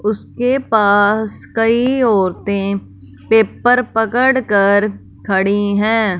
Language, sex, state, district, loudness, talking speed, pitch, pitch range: Hindi, female, Punjab, Fazilka, -15 LUFS, 75 wpm, 215 Hz, 200-225 Hz